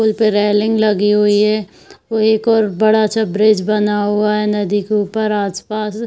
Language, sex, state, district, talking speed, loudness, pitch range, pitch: Hindi, female, Bihar, Saharsa, 215 wpm, -15 LUFS, 205-215 Hz, 210 Hz